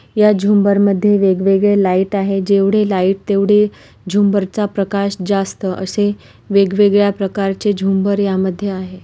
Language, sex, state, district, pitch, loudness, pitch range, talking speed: Marathi, female, Maharashtra, Pune, 200 Hz, -15 LUFS, 195-205 Hz, 145 wpm